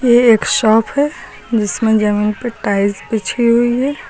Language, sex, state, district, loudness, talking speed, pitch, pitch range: Hindi, female, Uttar Pradesh, Lucknow, -14 LUFS, 160 wpm, 230 Hz, 210-245 Hz